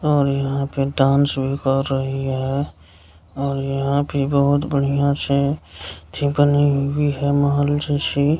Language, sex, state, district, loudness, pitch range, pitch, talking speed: Hindi, male, Bihar, Kishanganj, -20 LUFS, 135-145 Hz, 140 Hz, 145 wpm